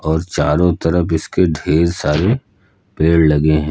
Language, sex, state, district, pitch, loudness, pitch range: Hindi, male, Uttar Pradesh, Lucknow, 80 Hz, -15 LUFS, 75-90 Hz